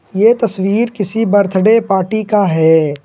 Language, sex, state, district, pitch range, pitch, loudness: Hindi, male, Jharkhand, Ranchi, 190-220 Hz, 205 Hz, -13 LUFS